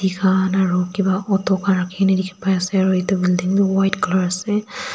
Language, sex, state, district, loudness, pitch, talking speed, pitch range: Nagamese, female, Nagaland, Dimapur, -19 LUFS, 190 Hz, 170 wpm, 185-195 Hz